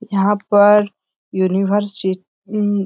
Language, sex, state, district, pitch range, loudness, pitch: Hindi, male, Bihar, Lakhisarai, 190-205 Hz, -16 LUFS, 200 Hz